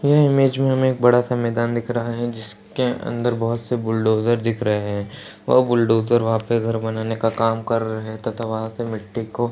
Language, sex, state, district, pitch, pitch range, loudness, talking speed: Hindi, male, Uttar Pradesh, Deoria, 115 Hz, 110-120 Hz, -21 LUFS, 220 wpm